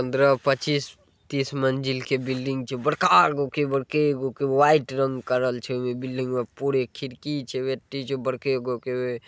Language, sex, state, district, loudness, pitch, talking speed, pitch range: Maithili, male, Bihar, Saharsa, -24 LUFS, 135 Hz, 150 wpm, 125-140 Hz